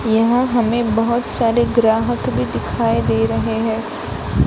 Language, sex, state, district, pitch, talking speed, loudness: Hindi, female, Gujarat, Gandhinagar, 225 Hz, 135 wpm, -17 LUFS